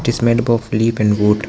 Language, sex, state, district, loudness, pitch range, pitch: English, male, Arunachal Pradesh, Lower Dibang Valley, -16 LUFS, 105-115 Hz, 115 Hz